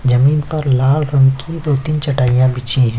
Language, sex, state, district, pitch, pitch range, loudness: Hindi, male, Chhattisgarh, Kabirdham, 135 Hz, 130-150 Hz, -15 LUFS